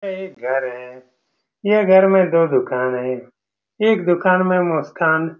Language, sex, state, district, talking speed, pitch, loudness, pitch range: Hindi, male, Bihar, Saran, 165 wpm, 165 Hz, -17 LUFS, 125-190 Hz